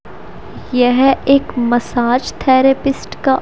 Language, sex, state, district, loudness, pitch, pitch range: Hindi, female, Haryana, Rohtak, -14 LUFS, 260 Hz, 245-270 Hz